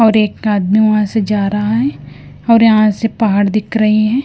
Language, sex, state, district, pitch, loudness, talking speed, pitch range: Hindi, female, Himachal Pradesh, Shimla, 215 Hz, -13 LUFS, 210 wpm, 210-225 Hz